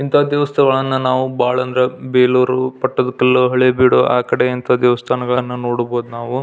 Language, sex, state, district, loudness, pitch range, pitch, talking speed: Kannada, male, Karnataka, Belgaum, -15 LUFS, 125-130 Hz, 125 Hz, 110 wpm